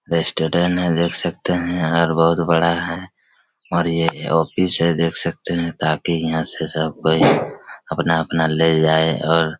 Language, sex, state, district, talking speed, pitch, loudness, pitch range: Hindi, male, Chhattisgarh, Raigarh, 175 wpm, 85 Hz, -18 LUFS, 80-85 Hz